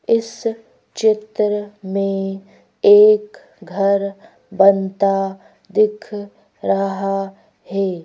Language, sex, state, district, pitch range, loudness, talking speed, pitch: Hindi, female, Madhya Pradesh, Bhopal, 195-215 Hz, -18 LUFS, 65 wpm, 200 Hz